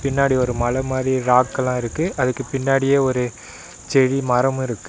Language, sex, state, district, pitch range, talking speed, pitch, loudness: Tamil, male, Tamil Nadu, Namakkal, 125-135 Hz, 145 wpm, 130 Hz, -19 LUFS